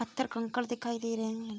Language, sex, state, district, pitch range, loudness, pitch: Hindi, female, Bihar, Araria, 225-240 Hz, -34 LUFS, 230 Hz